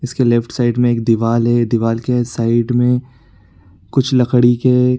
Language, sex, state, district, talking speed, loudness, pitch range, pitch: Hindi, male, Bihar, Supaul, 180 wpm, -15 LUFS, 115-125 Hz, 120 Hz